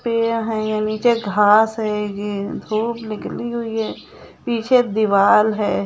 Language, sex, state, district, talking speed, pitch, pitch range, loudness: Hindi, female, Chhattisgarh, Bilaspur, 90 wpm, 220 Hz, 210-230 Hz, -19 LUFS